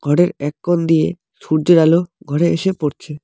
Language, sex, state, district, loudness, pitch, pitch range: Bengali, male, West Bengal, Alipurduar, -16 LUFS, 165 Hz, 150-175 Hz